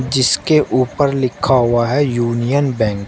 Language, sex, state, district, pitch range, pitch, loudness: Hindi, male, Uttar Pradesh, Shamli, 120-140 Hz, 130 Hz, -15 LUFS